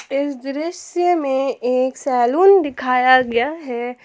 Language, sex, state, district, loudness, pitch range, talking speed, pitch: Hindi, female, Jharkhand, Palamu, -17 LUFS, 250-315 Hz, 120 wpm, 265 Hz